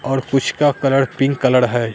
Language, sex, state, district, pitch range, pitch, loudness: Hindi, male, Bihar, Katihar, 125-135 Hz, 135 Hz, -16 LUFS